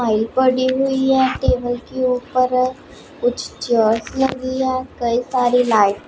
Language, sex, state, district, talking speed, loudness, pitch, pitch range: Hindi, female, Punjab, Pathankot, 150 wpm, -18 LUFS, 255 Hz, 240-260 Hz